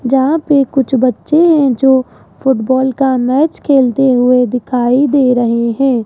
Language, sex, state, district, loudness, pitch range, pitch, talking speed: Hindi, female, Rajasthan, Jaipur, -12 LUFS, 250-275 Hz, 260 Hz, 150 wpm